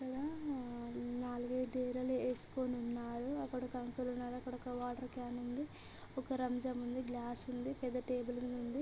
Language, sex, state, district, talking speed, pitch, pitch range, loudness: Telugu, female, Telangana, Karimnagar, 170 wpm, 250 Hz, 245-255 Hz, -41 LUFS